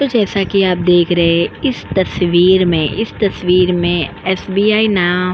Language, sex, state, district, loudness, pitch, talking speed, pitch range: Hindi, female, Goa, North and South Goa, -14 LUFS, 185 Hz, 180 wpm, 175-200 Hz